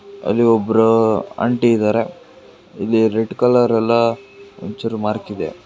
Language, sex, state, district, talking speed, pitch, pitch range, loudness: Kannada, male, Karnataka, Bangalore, 115 wpm, 115 Hz, 110-125 Hz, -17 LUFS